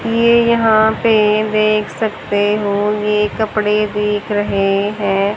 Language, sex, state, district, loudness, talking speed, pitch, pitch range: Hindi, male, Haryana, Jhajjar, -15 LUFS, 125 wpm, 210 Hz, 205-220 Hz